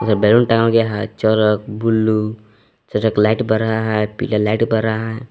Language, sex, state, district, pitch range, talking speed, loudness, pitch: Hindi, male, Jharkhand, Palamu, 105-115 Hz, 205 wpm, -17 LUFS, 110 Hz